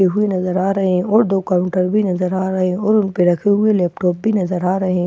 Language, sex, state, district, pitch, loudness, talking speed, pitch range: Hindi, female, Bihar, Katihar, 185 Hz, -17 LUFS, 200 wpm, 180-200 Hz